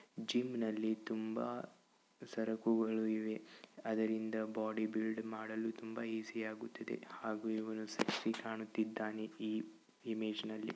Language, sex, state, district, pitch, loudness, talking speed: Kannada, male, Karnataka, Bijapur, 110 Hz, -41 LUFS, 100 wpm